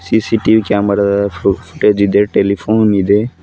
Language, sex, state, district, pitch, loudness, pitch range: Kannada, male, Karnataka, Bidar, 100 Hz, -13 LUFS, 100-110 Hz